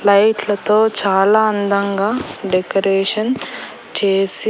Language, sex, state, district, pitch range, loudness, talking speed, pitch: Telugu, female, Andhra Pradesh, Annamaya, 195-215 Hz, -16 LUFS, 65 wpm, 200 Hz